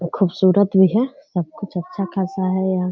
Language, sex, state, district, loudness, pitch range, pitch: Hindi, female, Bihar, Purnia, -19 LUFS, 185-200 Hz, 190 Hz